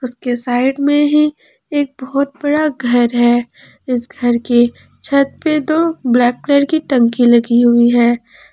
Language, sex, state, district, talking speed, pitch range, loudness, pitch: Hindi, female, Jharkhand, Palamu, 150 wpm, 240-290 Hz, -14 LUFS, 255 Hz